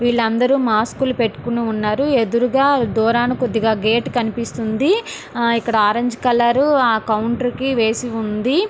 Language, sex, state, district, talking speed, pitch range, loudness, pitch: Telugu, female, Andhra Pradesh, Srikakulam, 110 wpm, 225-250 Hz, -17 LUFS, 235 Hz